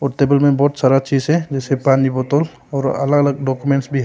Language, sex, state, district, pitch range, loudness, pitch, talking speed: Hindi, male, Arunachal Pradesh, Papum Pare, 135-145 Hz, -16 LUFS, 140 Hz, 235 wpm